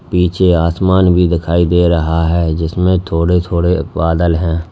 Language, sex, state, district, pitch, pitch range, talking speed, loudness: Hindi, male, Uttar Pradesh, Lalitpur, 85 Hz, 85-90 Hz, 155 wpm, -13 LUFS